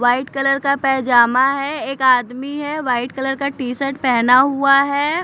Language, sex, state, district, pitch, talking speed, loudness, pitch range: Hindi, female, Maharashtra, Mumbai Suburban, 270 Hz, 185 wpm, -17 LUFS, 255-275 Hz